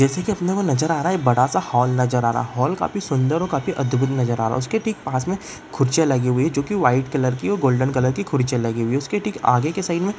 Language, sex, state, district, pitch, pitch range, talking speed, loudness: Hindi, male, Bihar, Darbhanga, 135 Hz, 125-175 Hz, 295 wpm, -20 LUFS